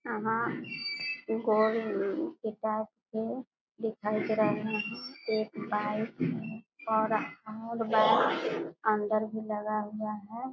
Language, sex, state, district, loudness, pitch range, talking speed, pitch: Hindi, female, Bihar, East Champaran, -31 LUFS, 215-225 Hz, 105 wpm, 220 Hz